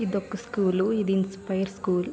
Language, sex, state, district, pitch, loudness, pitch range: Telugu, female, Andhra Pradesh, Srikakulam, 195 Hz, -27 LUFS, 190-210 Hz